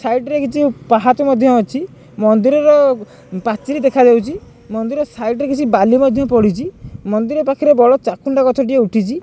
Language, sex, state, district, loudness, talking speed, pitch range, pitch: Odia, male, Odisha, Khordha, -14 LUFS, 155 wpm, 230-280 Hz, 260 Hz